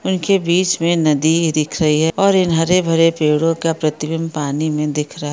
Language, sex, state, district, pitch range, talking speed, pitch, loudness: Hindi, female, Rajasthan, Churu, 150-170 Hz, 225 wpm, 165 Hz, -16 LUFS